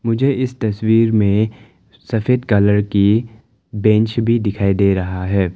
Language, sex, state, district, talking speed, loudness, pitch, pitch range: Hindi, male, Arunachal Pradesh, Longding, 140 wpm, -16 LUFS, 110 Hz, 100-115 Hz